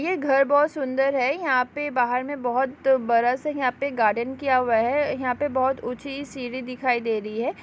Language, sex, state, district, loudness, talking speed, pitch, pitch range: Hindi, female, Uttarakhand, Tehri Garhwal, -23 LUFS, 210 wpm, 260 Hz, 245-280 Hz